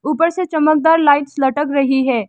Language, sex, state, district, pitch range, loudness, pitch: Hindi, female, Arunachal Pradesh, Lower Dibang Valley, 275-315 Hz, -15 LUFS, 290 Hz